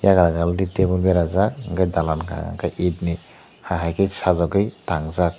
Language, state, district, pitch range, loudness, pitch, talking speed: Kokborok, Tripura, Dhalai, 85-95 Hz, -21 LUFS, 90 Hz, 145 wpm